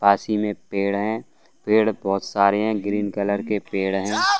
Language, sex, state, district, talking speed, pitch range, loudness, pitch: Hindi, male, Bihar, Saran, 190 wpm, 100-110 Hz, -22 LUFS, 100 Hz